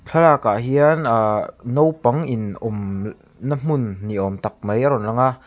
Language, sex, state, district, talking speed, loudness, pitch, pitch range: Mizo, male, Mizoram, Aizawl, 185 wpm, -20 LUFS, 120 Hz, 105-145 Hz